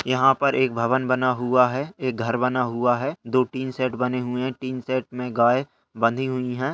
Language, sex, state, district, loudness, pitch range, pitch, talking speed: Hindi, male, Bihar, Jahanabad, -23 LUFS, 125-130 Hz, 130 Hz, 220 wpm